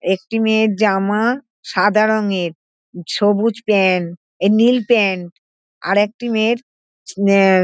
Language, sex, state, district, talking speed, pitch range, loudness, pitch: Bengali, female, West Bengal, North 24 Parganas, 120 wpm, 190-225 Hz, -16 LUFS, 205 Hz